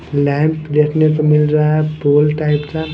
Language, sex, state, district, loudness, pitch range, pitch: Hindi, male, Punjab, Kapurthala, -14 LUFS, 150-155 Hz, 150 Hz